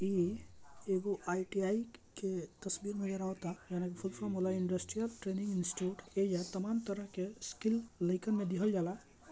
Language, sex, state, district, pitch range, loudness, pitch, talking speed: Bhojpuri, male, Bihar, Gopalganj, 185-205 Hz, -38 LUFS, 195 Hz, 165 wpm